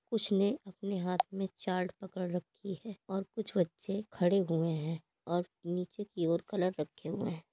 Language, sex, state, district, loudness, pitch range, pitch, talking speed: Hindi, female, Uttar Pradesh, Muzaffarnagar, -35 LUFS, 175-200 Hz, 185 Hz, 185 wpm